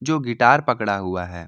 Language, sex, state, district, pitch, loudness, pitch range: Hindi, male, Jharkhand, Ranchi, 120 Hz, -19 LUFS, 90-125 Hz